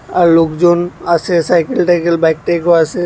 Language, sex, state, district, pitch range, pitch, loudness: Bengali, male, Tripura, West Tripura, 165-175 Hz, 170 Hz, -12 LUFS